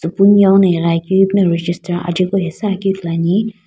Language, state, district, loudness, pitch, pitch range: Sumi, Nagaland, Dimapur, -14 LUFS, 185 Hz, 170-195 Hz